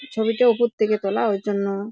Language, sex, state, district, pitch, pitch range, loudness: Bengali, female, West Bengal, Jalpaiguri, 215 Hz, 200-235 Hz, -21 LUFS